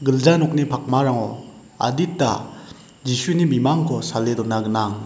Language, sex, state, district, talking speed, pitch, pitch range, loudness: Garo, male, Meghalaya, West Garo Hills, 105 wpm, 130 Hz, 115-150 Hz, -20 LUFS